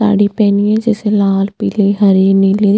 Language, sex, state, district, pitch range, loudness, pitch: Hindi, female, Chhattisgarh, Jashpur, 200-210 Hz, -12 LUFS, 205 Hz